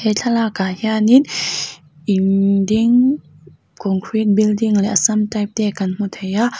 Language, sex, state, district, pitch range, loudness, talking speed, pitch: Mizo, female, Mizoram, Aizawl, 195-220 Hz, -17 LUFS, 145 wpm, 210 Hz